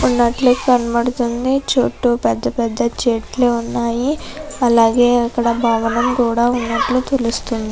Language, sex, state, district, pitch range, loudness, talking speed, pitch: Telugu, female, Andhra Pradesh, Chittoor, 235-250 Hz, -16 LUFS, 100 wpm, 240 Hz